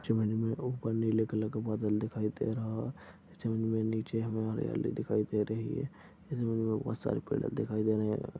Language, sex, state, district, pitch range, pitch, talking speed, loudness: Hindi, male, Chhattisgarh, Bastar, 110-115 Hz, 110 Hz, 200 wpm, -34 LUFS